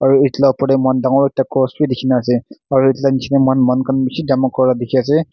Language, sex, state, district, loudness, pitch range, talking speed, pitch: Nagamese, male, Nagaland, Kohima, -15 LUFS, 130-135 Hz, 280 wpm, 135 Hz